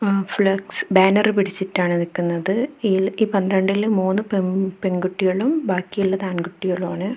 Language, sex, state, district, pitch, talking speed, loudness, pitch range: Malayalam, female, Kerala, Kasaragod, 195 Hz, 110 wpm, -20 LUFS, 185-200 Hz